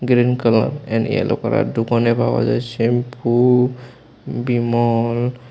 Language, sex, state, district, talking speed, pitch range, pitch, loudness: Bengali, male, Tripura, West Tripura, 110 wpm, 115-125 Hz, 120 Hz, -18 LUFS